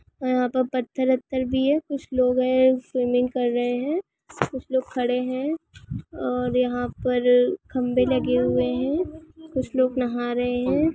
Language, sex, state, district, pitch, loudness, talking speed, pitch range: Hindi, female, Chhattisgarh, Kabirdham, 255 Hz, -23 LUFS, 160 wpm, 250-265 Hz